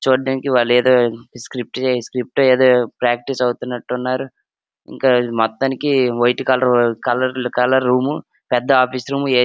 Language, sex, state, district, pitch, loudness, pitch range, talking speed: Telugu, male, Andhra Pradesh, Srikakulam, 125 Hz, -17 LUFS, 120-130 Hz, 135 wpm